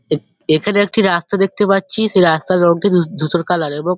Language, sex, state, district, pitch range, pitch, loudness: Bengali, male, West Bengal, Dakshin Dinajpur, 170-200 Hz, 180 Hz, -15 LUFS